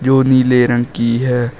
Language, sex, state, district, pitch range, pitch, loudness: Hindi, male, Uttar Pradesh, Shamli, 120-130 Hz, 125 Hz, -13 LUFS